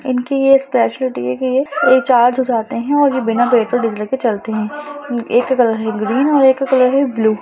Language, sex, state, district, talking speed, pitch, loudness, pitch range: Hindi, female, Bihar, Lakhisarai, 245 wpm, 255 Hz, -15 LUFS, 230-270 Hz